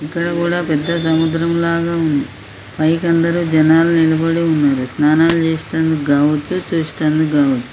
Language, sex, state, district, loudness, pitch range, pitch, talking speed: Telugu, male, Telangana, Karimnagar, -15 LUFS, 150-170 Hz, 160 Hz, 125 wpm